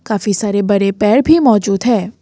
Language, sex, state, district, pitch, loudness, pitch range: Hindi, female, Assam, Kamrup Metropolitan, 210 Hz, -13 LUFS, 200-230 Hz